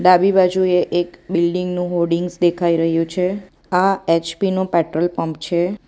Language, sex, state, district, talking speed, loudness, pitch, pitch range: Gujarati, female, Gujarat, Valsad, 145 wpm, -18 LUFS, 175 Hz, 170-185 Hz